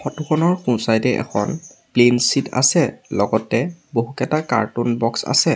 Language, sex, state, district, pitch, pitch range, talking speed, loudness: Assamese, male, Assam, Sonitpur, 125 Hz, 115-155 Hz, 140 wpm, -19 LUFS